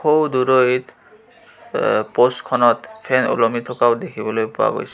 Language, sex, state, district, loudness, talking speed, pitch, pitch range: Assamese, male, Assam, Kamrup Metropolitan, -18 LUFS, 135 wpm, 125 Hz, 115-130 Hz